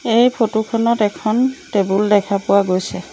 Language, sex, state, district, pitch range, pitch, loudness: Assamese, female, Assam, Sonitpur, 200-230 Hz, 215 Hz, -17 LUFS